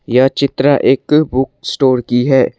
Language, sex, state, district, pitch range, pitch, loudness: Hindi, male, Assam, Kamrup Metropolitan, 125-140 Hz, 135 Hz, -13 LUFS